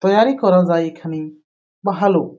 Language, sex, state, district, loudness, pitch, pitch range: Bengali, female, West Bengal, Jhargram, -17 LUFS, 180 Hz, 160-200 Hz